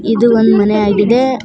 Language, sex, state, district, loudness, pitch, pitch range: Kannada, female, Karnataka, Koppal, -11 LUFS, 220 Hz, 205-235 Hz